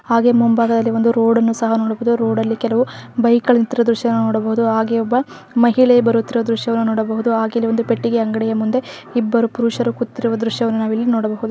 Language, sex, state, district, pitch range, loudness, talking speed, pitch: Kannada, female, Karnataka, Raichur, 225-235 Hz, -17 LUFS, 155 wpm, 230 Hz